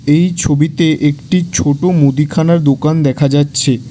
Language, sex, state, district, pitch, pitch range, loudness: Bengali, male, West Bengal, Alipurduar, 150 Hz, 140-165 Hz, -12 LUFS